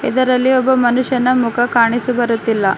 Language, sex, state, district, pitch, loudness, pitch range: Kannada, female, Karnataka, Bidar, 245 Hz, -14 LUFS, 235-255 Hz